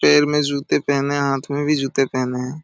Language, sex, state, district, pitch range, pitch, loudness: Hindi, male, Jharkhand, Sahebganj, 135-145 Hz, 140 Hz, -20 LUFS